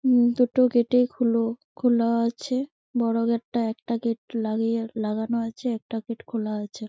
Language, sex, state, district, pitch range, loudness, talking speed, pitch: Bengali, female, West Bengal, Malda, 225-245 Hz, -25 LUFS, 175 wpm, 230 Hz